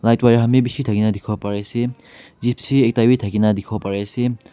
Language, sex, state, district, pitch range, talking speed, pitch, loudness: Nagamese, male, Nagaland, Kohima, 105-125 Hz, 185 wpm, 115 Hz, -19 LUFS